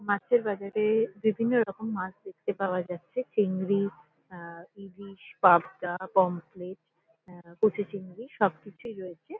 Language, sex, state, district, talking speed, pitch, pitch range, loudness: Bengali, female, West Bengal, Kolkata, 115 wpm, 195 Hz, 180-215 Hz, -28 LUFS